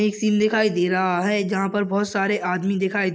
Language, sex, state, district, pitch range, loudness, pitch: Hindi, male, Chhattisgarh, Balrampur, 185-210 Hz, -21 LUFS, 200 Hz